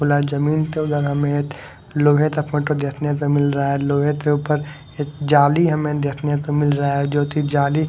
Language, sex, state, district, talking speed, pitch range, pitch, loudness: Hindi, male, Odisha, Khordha, 185 wpm, 145-150 Hz, 145 Hz, -19 LUFS